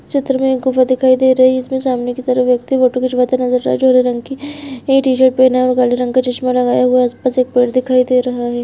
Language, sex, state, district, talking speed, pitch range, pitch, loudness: Hindi, female, Jharkhand, Sahebganj, 285 wpm, 250-260 Hz, 255 Hz, -14 LUFS